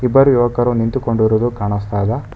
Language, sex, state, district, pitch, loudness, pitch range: Kannada, male, Karnataka, Bangalore, 115 Hz, -16 LUFS, 110-125 Hz